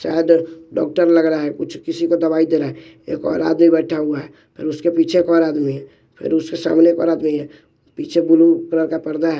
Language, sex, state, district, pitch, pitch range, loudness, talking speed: Hindi, male, Bihar, West Champaran, 165 Hz, 155-170 Hz, -17 LUFS, 240 wpm